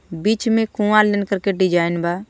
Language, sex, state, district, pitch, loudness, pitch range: Bhojpuri, female, Jharkhand, Palamu, 200 Hz, -18 LUFS, 175-215 Hz